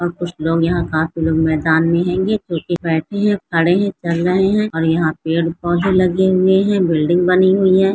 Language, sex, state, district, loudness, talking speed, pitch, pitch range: Hindi, female, Bihar, Jamui, -16 LUFS, 205 wpm, 175 Hz, 165-190 Hz